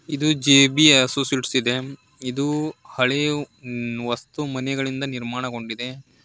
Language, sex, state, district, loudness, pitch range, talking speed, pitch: Kannada, male, Karnataka, Koppal, -21 LUFS, 125-145 Hz, 95 wpm, 135 Hz